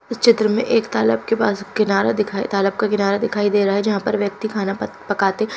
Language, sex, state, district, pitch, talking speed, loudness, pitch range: Hindi, female, Chhattisgarh, Raipur, 205 Hz, 235 wpm, -19 LUFS, 200-220 Hz